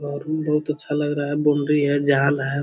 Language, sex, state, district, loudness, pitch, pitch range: Hindi, male, Bihar, Jamui, -21 LUFS, 145 Hz, 145-150 Hz